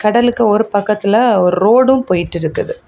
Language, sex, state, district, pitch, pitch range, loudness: Tamil, female, Tamil Nadu, Kanyakumari, 215 Hz, 200-240 Hz, -13 LUFS